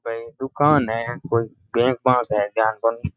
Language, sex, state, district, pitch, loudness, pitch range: Rajasthani, male, Rajasthan, Nagaur, 115 Hz, -21 LUFS, 110-130 Hz